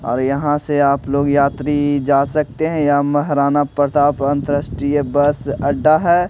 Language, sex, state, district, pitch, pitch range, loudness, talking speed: Hindi, male, Delhi, New Delhi, 145 Hz, 140-145 Hz, -16 LUFS, 150 wpm